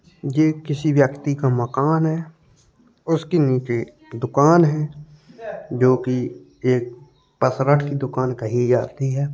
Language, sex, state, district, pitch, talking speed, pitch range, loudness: Hindi, male, Uttar Pradesh, Jalaun, 140 Hz, 115 wpm, 125-155 Hz, -20 LUFS